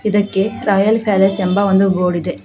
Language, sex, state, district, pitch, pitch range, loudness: Kannada, female, Karnataka, Koppal, 195 Hz, 190-205 Hz, -15 LUFS